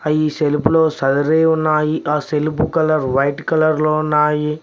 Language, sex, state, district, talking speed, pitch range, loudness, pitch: Telugu, male, Telangana, Mahabubabad, 155 wpm, 150-155 Hz, -16 LUFS, 155 Hz